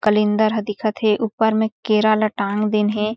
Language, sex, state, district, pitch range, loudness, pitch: Chhattisgarhi, female, Chhattisgarh, Sarguja, 210-220 Hz, -19 LUFS, 215 Hz